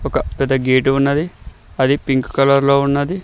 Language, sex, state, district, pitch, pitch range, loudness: Telugu, male, Telangana, Mahabubabad, 135 Hz, 130-140 Hz, -16 LUFS